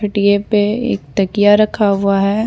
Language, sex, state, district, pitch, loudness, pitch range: Hindi, female, Chhattisgarh, Bastar, 205 Hz, -14 LUFS, 200-210 Hz